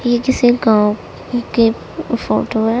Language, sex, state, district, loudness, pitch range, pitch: Hindi, female, Delhi, New Delhi, -16 LUFS, 225-245 Hz, 240 Hz